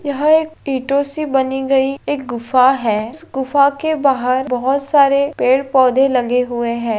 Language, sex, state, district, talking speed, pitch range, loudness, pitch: Hindi, female, Bihar, Purnia, 165 wpm, 250-280 Hz, -16 LUFS, 270 Hz